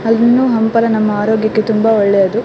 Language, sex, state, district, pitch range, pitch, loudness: Kannada, female, Karnataka, Dakshina Kannada, 215-230 Hz, 220 Hz, -13 LUFS